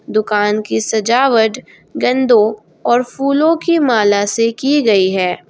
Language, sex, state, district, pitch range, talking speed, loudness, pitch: Hindi, female, Jharkhand, Garhwa, 210-260 Hz, 130 wpm, -14 LUFS, 225 Hz